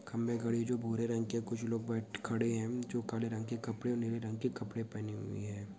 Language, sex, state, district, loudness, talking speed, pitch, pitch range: Hindi, male, Bihar, Sitamarhi, -38 LUFS, 280 wpm, 115 Hz, 110-115 Hz